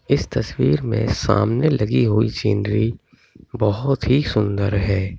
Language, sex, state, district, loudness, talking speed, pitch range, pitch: Hindi, male, Delhi, New Delhi, -19 LUFS, 125 wpm, 100-125 Hz, 105 Hz